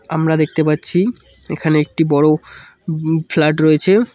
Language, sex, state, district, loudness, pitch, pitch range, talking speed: Bengali, male, West Bengal, Cooch Behar, -16 LUFS, 160 Hz, 155-165 Hz, 130 wpm